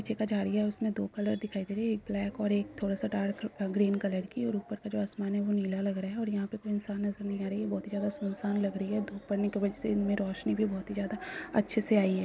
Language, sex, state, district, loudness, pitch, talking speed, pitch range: Hindi, female, Bihar, Kishanganj, -33 LUFS, 205 Hz, 305 wpm, 200-210 Hz